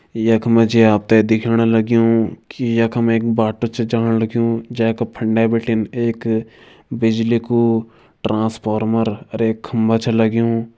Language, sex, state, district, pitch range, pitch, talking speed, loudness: Kumaoni, male, Uttarakhand, Tehri Garhwal, 110-115 Hz, 115 Hz, 155 wpm, -17 LUFS